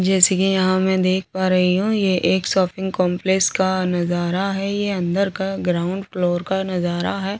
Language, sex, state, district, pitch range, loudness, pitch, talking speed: Hindi, female, Delhi, New Delhi, 180-190 Hz, -19 LUFS, 185 Hz, 195 wpm